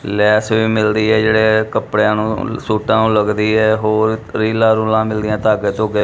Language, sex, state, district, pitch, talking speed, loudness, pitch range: Punjabi, male, Punjab, Kapurthala, 110 Hz, 180 wpm, -15 LUFS, 105-110 Hz